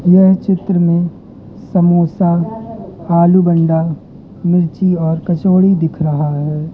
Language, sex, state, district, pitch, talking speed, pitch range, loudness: Hindi, male, Madhya Pradesh, Katni, 175 Hz, 105 wpm, 165-185 Hz, -13 LUFS